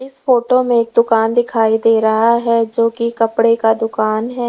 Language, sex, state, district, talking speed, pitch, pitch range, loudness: Hindi, female, Uttar Pradesh, Lalitpur, 200 wpm, 230 Hz, 225-235 Hz, -14 LUFS